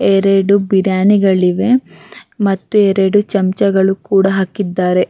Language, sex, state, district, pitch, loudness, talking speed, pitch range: Kannada, female, Karnataka, Raichur, 195 Hz, -13 LUFS, 95 wpm, 190-200 Hz